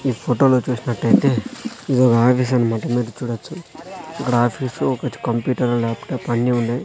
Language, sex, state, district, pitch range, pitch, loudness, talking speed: Telugu, male, Andhra Pradesh, Sri Satya Sai, 120-130 Hz, 125 Hz, -19 LUFS, 155 wpm